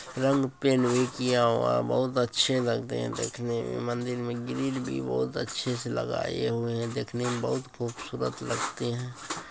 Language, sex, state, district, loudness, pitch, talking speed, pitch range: Hindi, male, Bihar, Begusarai, -29 LUFS, 120 Hz, 175 wpm, 115-125 Hz